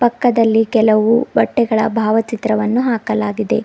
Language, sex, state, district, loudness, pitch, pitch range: Kannada, female, Karnataka, Bidar, -15 LUFS, 225 Hz, 215-235 Hz